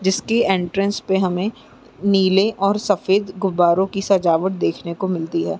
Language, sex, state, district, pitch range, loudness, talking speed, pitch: Hindi, female, Bihar, Araria, 175-195 Hz, -19 LUFS, 150 wpm, 190 Hz